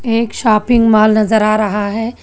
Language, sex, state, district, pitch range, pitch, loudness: Hindi, female, Telangana, Hyderabad, 215-230 Hz, 215 Hz, -13 LUFS